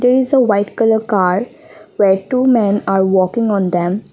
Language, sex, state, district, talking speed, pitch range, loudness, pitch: English, female, Assam, Kamrup Metropolitan, 190 wpm, 190-235 Hz, -14 LUFS, 205 Hz